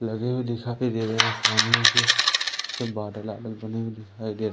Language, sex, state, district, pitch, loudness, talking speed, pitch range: Hindi, male, Madhya Pradesh, Umaria, 115 Hz, -22 LUFS, 200 wpm, 110-115 Hz